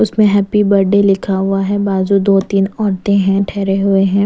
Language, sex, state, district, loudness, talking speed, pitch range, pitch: Hindi, female, Bihar, West Champaran, -13 LUFS, 195 wpm, 195-200 Hz, 200 Hz